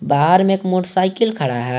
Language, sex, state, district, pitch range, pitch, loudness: Hindi, male, Jharkhand, Garhwa, 145-190 Hz, 185 Hz, -17 LUFS